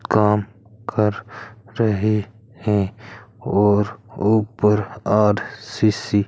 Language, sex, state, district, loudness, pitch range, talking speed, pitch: Hindi, male, Rajasthan, Bikaner, -20 LUFS, 105-110 Hz, 95 wpm, 105 Hz